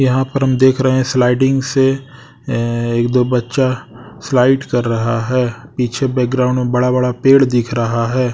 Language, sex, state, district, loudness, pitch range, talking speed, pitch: Hindi, male, Odisha, Sambalpur, -15 LUFS, 120-130 Hz, 175 wpm, 125 Hz